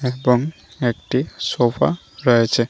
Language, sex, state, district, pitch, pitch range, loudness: Bengali, male, Tripura, West Tripura, 120 Hz, 120-130 Hz, -20 LUFS